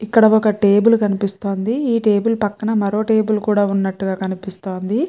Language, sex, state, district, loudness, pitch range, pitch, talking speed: Telugu, female, Andhra Pradesh, Chittoor, -17 LUFS, 200-220 Hz, 210 Hz, 140 wpm